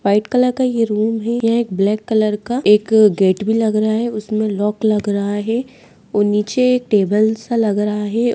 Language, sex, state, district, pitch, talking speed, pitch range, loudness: Hindi, female, Bihar, Muzaffarpur, 215 Hz, 215 wpm, 210-230 Hz, -16 LUFS